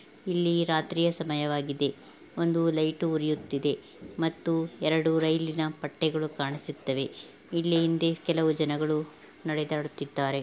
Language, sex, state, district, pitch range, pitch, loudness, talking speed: Kannada, female, Karnataka, Belgaum, 150-165 Hz, 155 Hz, -29 LUFS, 100 wpm